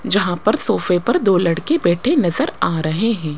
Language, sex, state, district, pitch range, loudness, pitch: Hindi, female, Rajasthan, Jaipur, 175-230 Hz, -17 LUFS, 185 Hz